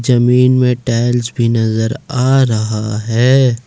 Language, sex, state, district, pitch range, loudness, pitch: Hindi, male, Jharkhand, Ranchi, 115-125 Hz, -13 LUFS, 120 Hz